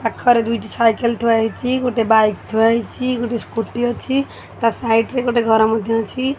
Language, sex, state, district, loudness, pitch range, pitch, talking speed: Odia, female, Odisha, Khordha, -18 LUFS, 225-245 Hz, 230 Hz, 160 wpm